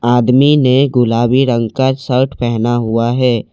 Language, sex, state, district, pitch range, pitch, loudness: Hindi, male, Assam, Kamrup Metropolitan, 120-130 Hz, 120 Hz, -13 LUFS